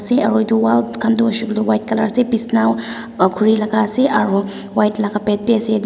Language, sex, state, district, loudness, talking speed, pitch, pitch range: Nagamese, female, Nagaland, Dimapur, -16 LUFS, 215 wpm, 220 Hz, 210-230 Hz